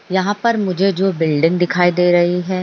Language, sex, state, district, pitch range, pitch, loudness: Hindi, female, Bihar, Bhagalpur, 175-195 Hz, 180 Hz, -16 LUFS